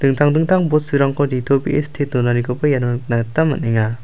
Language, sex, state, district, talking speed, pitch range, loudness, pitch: Garo, male, Meghalaya, South Garo Hills, 150 wpm, 120-150 Hz, -17 LUFS, 140 Hz